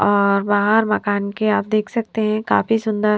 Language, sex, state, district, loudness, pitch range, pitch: Hindi, female, Punjab, Fazilka, -18 LUFS, 205-220 Hz, 215 Hz